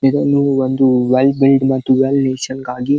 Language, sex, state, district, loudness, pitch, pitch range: Kannada, male, Karnataka, Belgaum, -14 LUFS, 135 Hz, 130-135 Hz